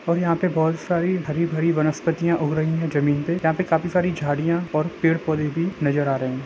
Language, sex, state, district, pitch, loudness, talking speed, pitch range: Hindi, male, Jharkhand, Jamtara, 160 Hz, -22 LUFS, 250 wpm, 155-170 Hz